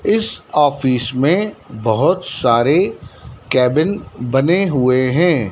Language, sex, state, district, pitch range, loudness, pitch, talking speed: Hindi, male, Madhya Pradesh, Dhar, 125-175 Hz, -16 LUFS, 135 Hz, 100 wpm